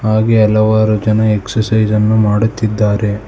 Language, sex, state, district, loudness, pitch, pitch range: Kannada, male, Karnataka, Bangalore, -13 LUFS, 110 Hz, 105-110 Hz